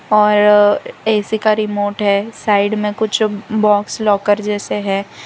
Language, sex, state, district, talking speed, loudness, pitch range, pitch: Hindi, female, Gujarat, Valsad, 135 wpm, -15 LUFS, 205-215 Hz, 210 Hz